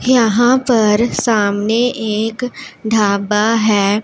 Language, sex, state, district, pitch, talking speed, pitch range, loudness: Hindi, female, Punjab, Pathankot, 220 Hz, 90 wpm, 210-240 Hz, -14 LUFS